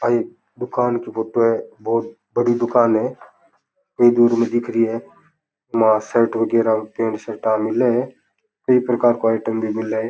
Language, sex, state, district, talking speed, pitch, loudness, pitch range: Rajasthani, male, Rajasthan, Churu, 185 wpm, 115 Hz, -19 LUFS, 115-120 Hz